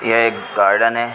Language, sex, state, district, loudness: Hindi, male, Uttar Pradesh, Ghazipur, -16 LUFS